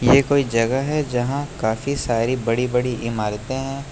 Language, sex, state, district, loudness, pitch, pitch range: Hindi, male, Uttar Pradesh, Lucknow, -21 LUFS, 125 Hz, 115-140 Hz